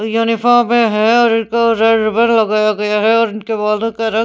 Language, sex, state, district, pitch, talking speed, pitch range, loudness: Hindi, female, Punjab, Pathankot, 225 Hz, 210 wpm, 215-230 Hz, -13 LUFS